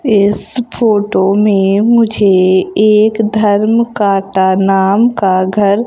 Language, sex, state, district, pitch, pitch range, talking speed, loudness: Hindi, female, Madhya Pradesh, Umaria, 205 Hz, 195-220 Hz, 100 wpm, -11 LUFS